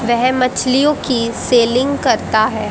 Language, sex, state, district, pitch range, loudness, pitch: Hindi, female, Haryana, Charkhi Dadri, 235-260 Hz, -15 LUFS, 250 Hz